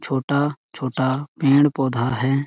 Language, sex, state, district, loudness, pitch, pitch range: Hindi, male, Chhattisgarh, Sarguja, -21 LUFS, 135 Hz, 130-140 Hz